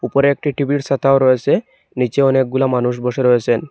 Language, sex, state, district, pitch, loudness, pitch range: Bengali, male, Assam, Hailakandi, 130 Hz, -16 LUFS, 125-140 Hz